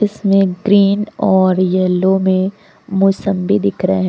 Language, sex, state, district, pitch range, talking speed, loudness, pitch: Hindi, female, Uttar Pradesh, Lucknow, 185-200 Hz, 130 wpm, -14 LUFS, 190 Hz